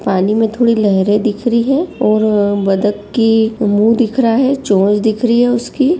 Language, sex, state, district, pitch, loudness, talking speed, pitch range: Hindi, female, Uttar Pradesh, Jyotiba Phule Nagar, 220 Hz, -13 LUFS, 190 wpm, 205-240 Hz